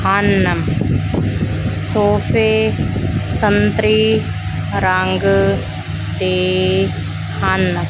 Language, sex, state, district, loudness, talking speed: Punjabi, female, Punjab, Fazilka, -16 LUFS, 45 wpm